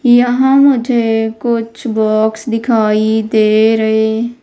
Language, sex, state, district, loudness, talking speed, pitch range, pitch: Hindi, female, Madhya Pradesh, Umaria, -12 LUFS, 95 wpm, 220-240 Hz, 225 Hz